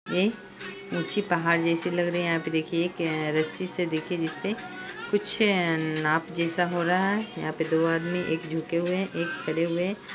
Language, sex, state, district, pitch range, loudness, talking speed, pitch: Hindi, female, Bihar, Purnia, 165-185 Hz, -27 LUFS, 195 wpm, 170 Hz